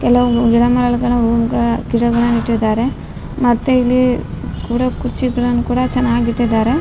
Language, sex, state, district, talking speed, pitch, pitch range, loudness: Kannada, female, Karnataka, Raichur, 125 wpm, 240 Hz, 235-245 Hz, -15 LUFS